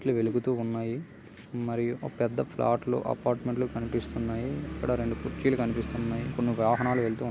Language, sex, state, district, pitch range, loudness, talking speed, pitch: Telugu, male, Karnataka, Gulbarga, 115-125 Hz, -30 LUFS, 165 wpm, 120 Hz